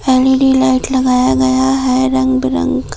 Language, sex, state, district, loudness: Hindi, female, Jharkhand, Palamu, -13 LUFS